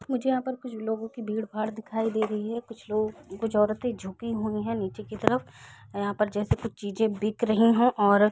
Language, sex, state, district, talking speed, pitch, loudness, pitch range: Hindi, female, Chhattisgarh, Rajnandgaon, 215 wpm, 220 Hz, -28 LUFS, 210-230 Hz